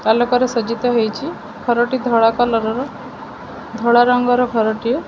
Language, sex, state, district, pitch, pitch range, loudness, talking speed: Odia, female, Odisha, Khordha, 240 Hz, 230-245 Hz, -17 LUFS, 120 wpm